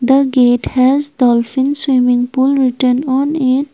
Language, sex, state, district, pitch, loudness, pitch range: English, female, Assam, Kamrup Metropolitan, 260 Hz, -13 LUFS, 250-275 Hz